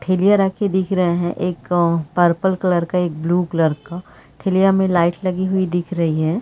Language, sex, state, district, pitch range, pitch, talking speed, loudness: Hindi, female, Chhattisgarh, Raigarh, 170-190 Hz, 180 Hz, 195 wpm, -18 LUFS